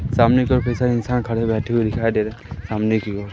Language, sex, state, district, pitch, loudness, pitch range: Hindi, male, Madhya Pradesh, Katni, 115 Hz, -20 LUFS, 110-120 Hz